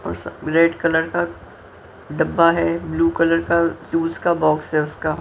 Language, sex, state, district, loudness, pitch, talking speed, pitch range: Hindi, female, Punjab, Pathankot, -19 LUFS, 165 Hz, 160 wpm, 155-170 Hz